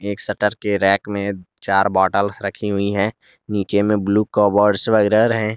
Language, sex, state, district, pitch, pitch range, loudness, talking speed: Hindi, male, Jharkhand, Garhwa, 100 Hz, 100-105 Hz, -18 LUFS, 170 wpm